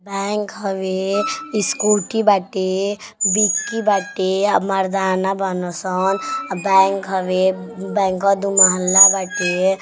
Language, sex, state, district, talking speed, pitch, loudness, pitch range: Bhojpuri, female, Uttar Pradesh, Deoria, 105 wpm, 195 Hz, -17 LUFS, 190-205 Hz